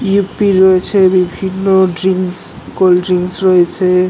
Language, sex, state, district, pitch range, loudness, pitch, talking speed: Bengali, male, West Bengal, North 24 Parganas, 180-190 Hz, -12 LUFS, 185 Hz, 160 wpm